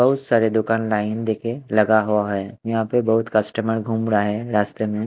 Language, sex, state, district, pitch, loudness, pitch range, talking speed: Hindi, male, Punjab, Kapurthala, 110 Hz, -21 LUFS, 105-115 Hz, 200 wpm